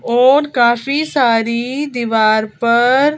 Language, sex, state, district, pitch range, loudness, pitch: Hindi, female, Madhya Pradesh, Bhopal, 235-275 Hz, -14 LUFS, 240 Hz